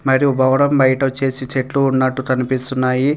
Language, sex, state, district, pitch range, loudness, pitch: Telugu, male, Telangana, Hyderabad, 130-135 Hz, -16 LUFS, 130 Hz